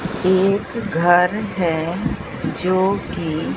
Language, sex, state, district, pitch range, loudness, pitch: Hindi, female, Bihar, Katihar, 170-200 Hz, -19 LUFS, 185 Hz